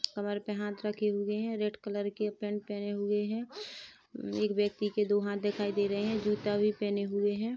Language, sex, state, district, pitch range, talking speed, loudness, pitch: Hindi, female, Chhattisgarh, Rajnandgaon, 205-210 Hz, 215 wpm, -33 LUFS, 210 Hz